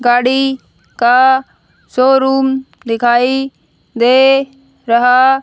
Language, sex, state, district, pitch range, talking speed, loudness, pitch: Hindi, female, Haryana, Rohtak, 245-270 Hz, 65 wpm, -12 LUFS, 260 Hz